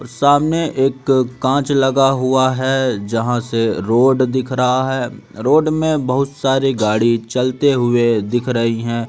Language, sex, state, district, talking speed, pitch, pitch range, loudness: Hindi, male, Madhya Pradesh, Umaria, 145 wpm, 130 Hz, 120-135 Hz, -16 LUFS